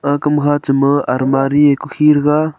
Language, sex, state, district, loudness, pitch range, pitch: Wancho, male, Arunachal Pradesh, Longding, -13 LUFS, 135-150 Hz, 145 Hz